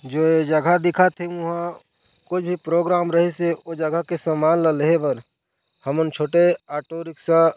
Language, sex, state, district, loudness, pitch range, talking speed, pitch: Chhattisgarhi, male, Chhattisgarh, Korba, -21 LUFS, 160-175 Hz, 180 wpm, 165 Hz